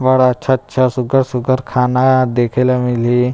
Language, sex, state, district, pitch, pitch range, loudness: Chhattisgarhi, male, Chhattisgarh, Rajnandgaon, 125 Hz, 125-130 Hz, -14 LUFS